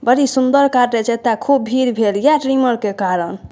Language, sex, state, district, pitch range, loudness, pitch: Maithili, female, Bihar, Saharsa, 215-265 Hz, -15 LUFS, 245 Hz